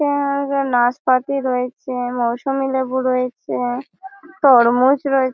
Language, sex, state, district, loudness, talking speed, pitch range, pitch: Bengali, female, West Bengal, Malda, -18 LUFS, 90 wpm, 245-275 Hz, 260 Hz